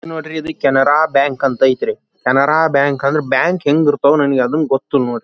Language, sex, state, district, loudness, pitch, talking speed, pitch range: Kannada, male, Karnataka, Belgaum, -15 LUFS, 145 Hz, 185 wpm, 135-155 Hz